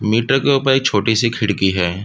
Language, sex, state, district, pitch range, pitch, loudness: Hindi, male, Uttar Pradesh, Budaun, 100-135 Hz, 110 Hz, -16 LUFS